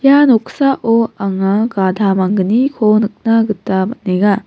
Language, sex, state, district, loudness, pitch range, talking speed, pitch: Garo, female, Meghalaya, West Garo Hills, -14 LUFS, 195-230 Hz, 105 wpm, 215 Hz